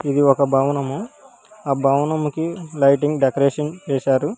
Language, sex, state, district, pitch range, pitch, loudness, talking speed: Telugu, male, Telangana, Hyderabad, 140-160 Hz, 145 Hz, -19 LUFS, 110 wpm